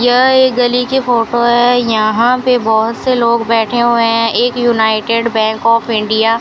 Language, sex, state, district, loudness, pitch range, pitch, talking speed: Hindi, female, Rajasthan, Bikaner, -12 LUFS, 225-245 Hz, 235 Hz, 185 wpm